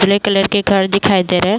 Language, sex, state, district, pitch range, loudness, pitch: Hindi, female, Uttar Pradesh, Jyotiba Phule Nagar, 195-200 Hz, -14 LUFS, 195 Hz